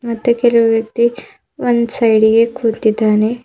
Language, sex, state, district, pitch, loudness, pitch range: Kannada, female, Karnataka, Bidar, 230 Hz, -14 LUFS, 225-240 Hz